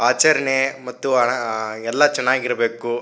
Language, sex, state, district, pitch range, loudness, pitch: Kannada, male, Karnataka, Shimoga, 115-135 Hz, -19 LUFS, 125 Hz